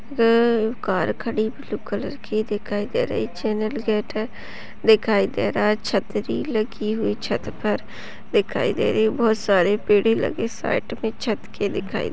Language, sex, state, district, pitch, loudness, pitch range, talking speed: Hindi, female, Chhattisgarh, Balrampur, 220 Hz, -22 LUFS, 210-230 Hz, 165 wpm